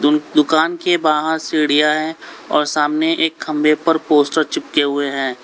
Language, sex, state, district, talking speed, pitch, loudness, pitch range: Hindi, male, Uttar Pradesh, Lalitpur, 155 wpm, 155 Hz, -16 LUFS, 150-160 Hz